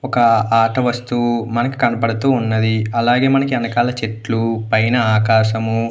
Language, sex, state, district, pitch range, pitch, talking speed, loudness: Telugu, male, Andhra Pradesh, Anantapur, 115-120 Hz, 115 Hz, 120 wpm, -16 LUFS